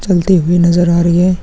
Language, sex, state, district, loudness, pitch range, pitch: Hindi, male, Chhattisgarh, Kabirdham, -11 LUFS, 170-180 Hz, 175 Hz